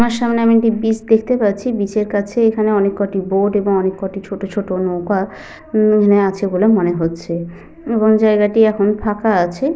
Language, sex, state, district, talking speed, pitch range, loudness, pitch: Bengali, female, Jharkhand, Sahebganj, 170 wpm, 195-220 Hz, -16 LUFS, 205 Hz